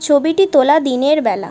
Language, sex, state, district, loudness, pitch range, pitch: Bengali, female, West Bengal, Jhargram, -13 LUFS, 260-310 Hz, 290 Hz